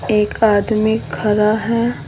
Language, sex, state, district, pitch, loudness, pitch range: Hindi, female, Bihar, Patna, 215 Hz, -16 LUFS, 210-225 Hz